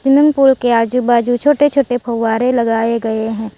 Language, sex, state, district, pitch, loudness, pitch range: Hindi, female, Gujarat, Valsad, 240 Hz, -14 LUFS, 230-270 Hz